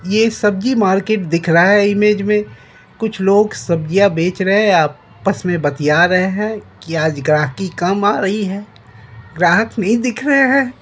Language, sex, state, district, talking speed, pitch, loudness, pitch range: Hindi, male, Jharkhand, Jamtara, 175 wpm, 195 Hz, -15 LUFS, 170-210 Hz